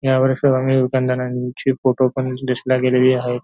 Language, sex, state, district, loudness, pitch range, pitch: Marathi, male, Maharashtra, Nagpur, -18 LUFS, 125-130 Hz, 130 Hz